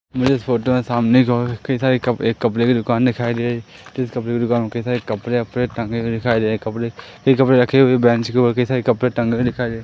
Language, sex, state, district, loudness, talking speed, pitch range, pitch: Hindi, male, Madhya Pradesh, Katni, -18 LUFS, 285 wpm, 115-125 Hz, 120 Hz